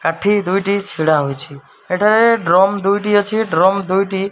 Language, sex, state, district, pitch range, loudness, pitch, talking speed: Odia, male, Odisha, Malkangiri, 170-205 Hz, -15 LUFS, 195 Hz, 140 wpm